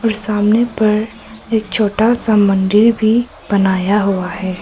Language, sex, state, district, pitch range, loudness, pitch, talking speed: Hindi, male, Arunachal Pradesh, Papum Pare, 200-225 Hz, -14 LUFS, 215 Hz, 130 wpm